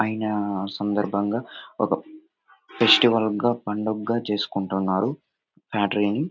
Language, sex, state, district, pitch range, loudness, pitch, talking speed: Telugu, male, Andhra Pradesh, Anantapur, 100-120 Hz, -23 LUFS, 105 Hz, 85 wpm